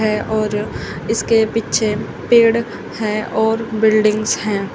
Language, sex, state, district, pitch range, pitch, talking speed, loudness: Hindi, female, Uttar Pradesh, Shamli, 215-225 Hz, 215 Hz, 115 wpm, -17 LUFS